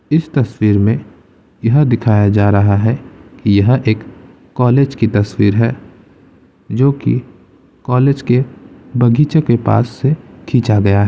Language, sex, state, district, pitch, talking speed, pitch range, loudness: Hindi, male, Uttar Pradesh, Gorakhpur, 120 Hz, 140 wpm, 105-130 Hz, -14 LUFS